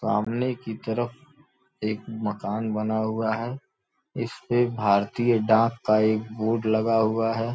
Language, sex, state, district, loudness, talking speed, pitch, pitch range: Hindi, male, Uttar Pradesh, Gorakhpur, -25 LUFS, 145 wpm, 110 Hz, 110-120 Hz